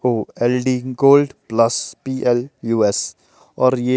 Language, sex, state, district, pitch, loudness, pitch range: Hindi, male, Himachal Pradesh, Shimla, 125 Hz, -18 LUFS, 115-130 Hz